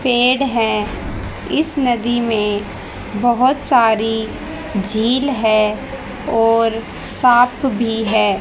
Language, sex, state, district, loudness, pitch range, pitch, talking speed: Hindi, female, Haryana, Jhajjar, -16 LUFS, 220-250 Hz, 230 Hz, 95 wpm